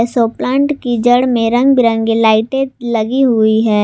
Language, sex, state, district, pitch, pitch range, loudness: Hindi, female, Jharkhand, Garhwa, 235 Hz, 225-255 Hz, -13 LUFS